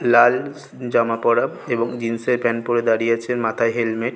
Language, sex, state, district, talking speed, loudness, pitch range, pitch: Bengali, male, West Bengal, North 24 Parganas, 190 wpm, -20 LUFS, 115-120 Hz, 120 Hz